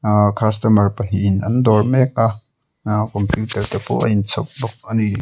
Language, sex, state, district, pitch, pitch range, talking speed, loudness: Mizo, male, Mizoram, Aizawl, 110 Hz, 105-115 Hz, 195 wpm, -18 LUFS